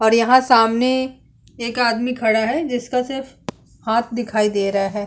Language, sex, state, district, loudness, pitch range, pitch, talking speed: Hindi, female, Chhattisgarh, Kabirdham, -18 LUFS, 220-250 Hz, 235 Hz, 165 wpm